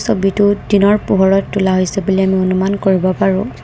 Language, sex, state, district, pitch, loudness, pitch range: Assamese, female, Assam, Kamrup Metropolitan, 195 Hz, -14 LUFS, 190-200 Hz